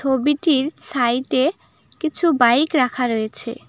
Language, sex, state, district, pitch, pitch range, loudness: Bengali, female, West Bengal, Cooch Behar, 265 Hz, 245-305 Hz, -19 LUFS